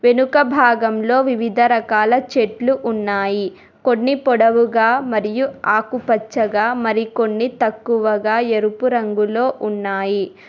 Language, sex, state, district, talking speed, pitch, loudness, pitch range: Telugu, female, Telangana, Hyderabad, 85 wpm, 230 Hz, -17 LUFS, 215-245 Hz